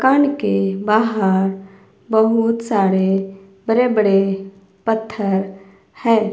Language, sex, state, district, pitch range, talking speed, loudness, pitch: Hindi, female, Himachal Pradesh, Shimla, 195-225 Hz, 85 wpm, -18 LUFS, 195 Hz